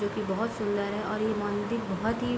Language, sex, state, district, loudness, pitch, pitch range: Hindi, female, Bihar, Gopalganj, -30 LUFS, 215 Hz, 205-225 Hz